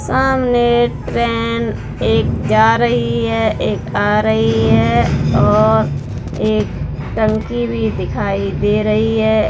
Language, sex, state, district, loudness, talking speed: Hindi, female, Bihar, Darbhanga, -15 LUFS, 120 wpm